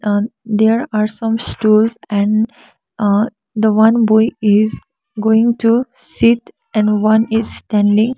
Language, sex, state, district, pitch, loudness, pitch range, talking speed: English, female, Sikkim, Gangtok, 220 Hz, -15 LUFS, 210-230 Hz, 130 wpm